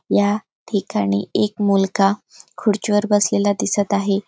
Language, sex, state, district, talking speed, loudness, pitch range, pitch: Marathi, female, Maharashtra, Chandrapur, 125 wpm, -19 LUFS, 195-205 Hz, 205 Hz